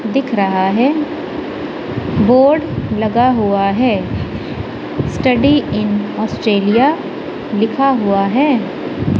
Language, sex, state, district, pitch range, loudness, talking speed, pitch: Hindi, female, Punjab, Kapurthala, 210-275 Hz, -15 LUFS, 85 wpm, 240 Hz